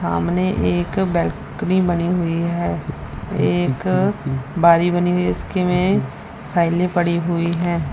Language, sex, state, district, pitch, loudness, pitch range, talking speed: Hindi, female, Punjab, Fazilka, 170 Hz, -19 LUFS, 130-180 Hz, 130 wpm